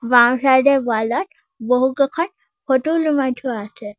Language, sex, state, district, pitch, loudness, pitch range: Assamese, female, Assam, Sonitpur, 260 Hz, -18 LUFS, 235-280 Hz